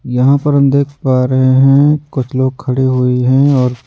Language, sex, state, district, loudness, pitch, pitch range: Hindi, male, Delhi, New Delhi, -12 LUFS, 130 Hz, 130-140 Hz